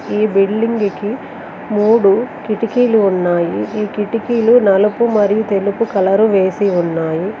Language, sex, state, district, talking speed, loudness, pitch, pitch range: Telugu, female, Telangana, Mahabubabad, 115 wpm, -15 LUFS, 210 Hz, 195-225 Hz